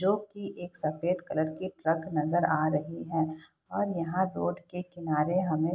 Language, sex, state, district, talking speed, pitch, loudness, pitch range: Hindi, female, Bihar, Saharsa, 190 wpm, 165 Hz, -31 LUFS, 155-180 Hz